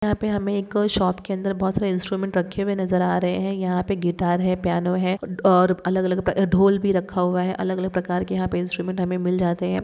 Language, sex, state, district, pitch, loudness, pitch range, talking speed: Hindi, female, West Bengal, Paschim Medinipur, 185 Hz, -22 LUFS, 180-195 Hz, 270 wpm